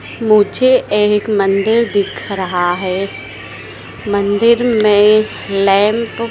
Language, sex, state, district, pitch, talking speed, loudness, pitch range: Hindi, female, Madhya Pradesh, Dhar, 205 Hz, 95 wpm, -13 LUFS, 190-215 Hz